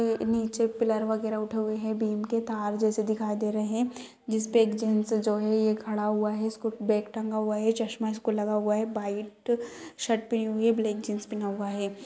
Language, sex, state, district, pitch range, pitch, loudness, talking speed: Kumaoni, female, Uttarakhand, Uttarkashi, 215-225 Hz, 220 Hz, -28 LUFS, 220 wpm